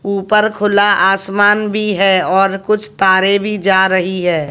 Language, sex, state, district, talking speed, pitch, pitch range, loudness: Hindi, female, Haryana, Jhajjar, 160 wpm, 195 Hz, 190-210 Hz, -13 LUFS